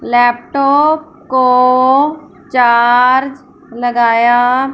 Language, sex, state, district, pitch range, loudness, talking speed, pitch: Hindi, female, Punjab, Fazilka, 245-275 Hz, -11 LUFS, 50 wpm, 255 Hz